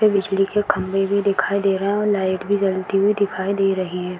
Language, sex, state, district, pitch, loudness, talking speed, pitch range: Hindi, female, Uttar Pradesh, Varanasi, 195 Hz, -20 LUFS, 255 wpm, 190-200 Hz